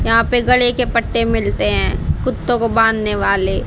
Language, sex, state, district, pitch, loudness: Hindi, female, Haryana, Charkhi Dadri, 225 Hz, -16 LUFS